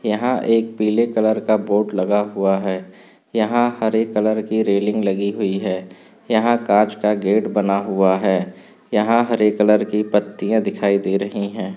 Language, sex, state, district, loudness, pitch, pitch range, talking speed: Hindi, male, Uttar Pradesh, Budaun, -19 LUFS, 105 Hz, 100-110 Hz, 170 wpm